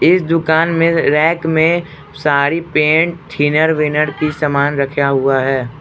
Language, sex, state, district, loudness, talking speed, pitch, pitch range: Hindi, male, Arunachal Pradesh, Lower Dibang Valley, -14 LUFS, 145 wpm, 155 Hz, 140-165 Hz